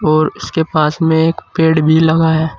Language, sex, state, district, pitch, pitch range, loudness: Hindi, male, Uttar Pradesh, Saharanpur, 160 Hz, 155-160 Hz, -13 LUFS